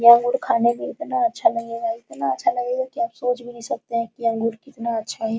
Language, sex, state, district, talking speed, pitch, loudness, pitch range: Hindi, female, Bihar, Araria, 255 wpm, 240 Hz, -23 LUFS, 230-320 Hz